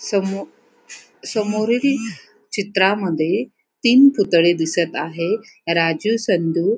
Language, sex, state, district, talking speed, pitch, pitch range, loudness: Marathi, female, Maharashtra, Pune, 90 wpm, 200 Hz, 170-225 Hz, -18 LUFS